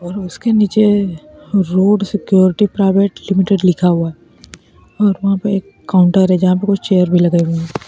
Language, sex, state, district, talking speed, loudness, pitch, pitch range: Hindi, male, Bihar, Kaimur, 170 wpm, -14 LUFS, 190 Hz, 180-200 Hz